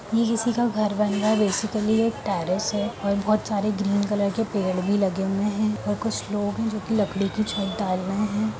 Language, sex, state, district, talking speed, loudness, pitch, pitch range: Hindi, female, Bihar, Jamui, 245 wpm, -24 LUFS, 210 Hz, 200-215 Hz